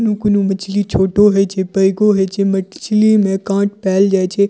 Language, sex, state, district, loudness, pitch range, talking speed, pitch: Maithili, female, Bihar, Purnia, -14 LUFS, 195-205 Hz, 175 wpm, 200 Hz